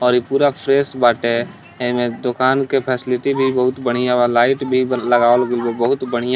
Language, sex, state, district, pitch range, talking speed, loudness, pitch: Bhojpuri, male, Bihar, East Champaran, 120-130 Hz, 190 wpm, -17 LUFS, 125 Hz